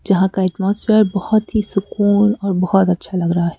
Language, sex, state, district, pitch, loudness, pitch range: Hindi, female, Madhya Pradesh, Bhopal, 195 Hz, -16 LUFS, 185-210 Hz